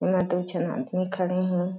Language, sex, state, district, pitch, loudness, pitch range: Chhattisgarhi, female, Chhattisgarh, Jashpur, 180 Hz, -27 LUFS, 180-185 Hz